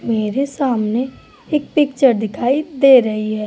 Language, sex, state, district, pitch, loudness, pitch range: Hindi, female, Uttar Pradesh, Budaun, 260 Hz, -16 LUFS, 220-275 Hz